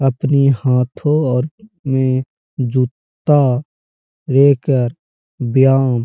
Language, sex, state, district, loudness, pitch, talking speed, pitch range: Hindi, male, Uttar Pradesh, Jalaun, -16 LUFS, 130 Hz, 80 wpm, 125-140 Hz